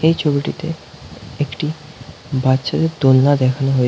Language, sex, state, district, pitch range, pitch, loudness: Bengali, male, West Bengal, North 24 Parganas, 130-155 Hz, 145 Hz, -17 LUFS